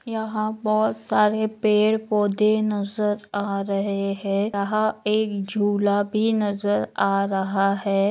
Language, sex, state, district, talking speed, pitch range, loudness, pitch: Hindi, female, Maharashtra, Nagpur, 125 wpm, 200-215 Hz, -23 LUFS, 205 Hz